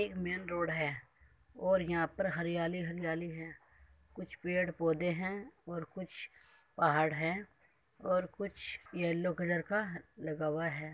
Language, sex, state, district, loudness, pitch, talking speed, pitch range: Hindi, male, Uttar Pradesh, Muzaffarnagar, -36 LUFS, 170 Hz, 150 wpm, 160-180 Hz